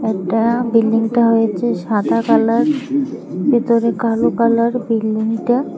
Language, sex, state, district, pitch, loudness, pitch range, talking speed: Bengali, female, Tripura, West Tripura, 230 Hz, -16 LUFS, 225-240 Hz, 115 wpm